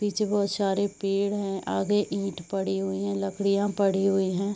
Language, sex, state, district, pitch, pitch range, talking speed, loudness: Hindi, female, Bihar, Saharsa, 195 Hz, 195-200 Hz, 185 wpm, -27 LUFS